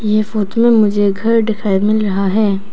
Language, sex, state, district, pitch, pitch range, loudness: Hindi, female, Arunachal Pradesh, Papum Pare, 210 Hz, 200-220 Hz, -14 LUFS